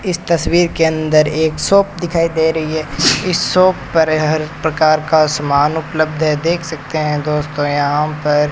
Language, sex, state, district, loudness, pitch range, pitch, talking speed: Hindi, male, Rajasthan, Bikaner, -15 LUFS, 150-165 Hz, 155 Hz, 175 wpm